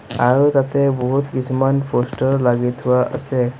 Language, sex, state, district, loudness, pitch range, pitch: Assamese, male, Assam, Sonitpur, -18 LUFS, 125-135 Hz, 130 Hz